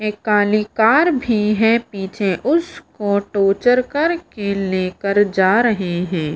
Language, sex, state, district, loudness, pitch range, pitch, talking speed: Hindi, female, Bihar, Kaimur, -17 LUFS, 195-240 Hz, 210 Hz, 120 wpm